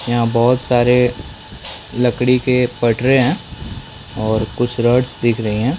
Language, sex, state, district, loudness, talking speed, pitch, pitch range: Hindi, male, Chhattisgarh, Bilaspur, -16 LUFS, 145 wpm, 120 Hz, 115-125 Hz